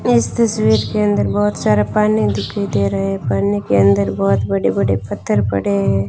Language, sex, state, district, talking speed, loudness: Hindi, female, Rajasthan, Bikaner, 195 wpm, -16 LUFS